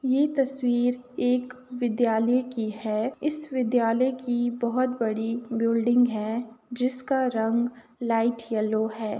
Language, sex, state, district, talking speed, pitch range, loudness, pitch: Hindi, female, Uttar Pradesh, Jalaun, 130 wpm, 230-250 Hz, -26 LUFS, 240 Hz